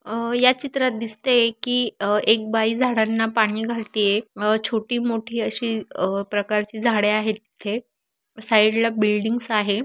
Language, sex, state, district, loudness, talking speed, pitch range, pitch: Marathi, female, Maharashtra, Aurangabad, -21 LUFS, 150 wpm, 215-235 Hz, 220 Hz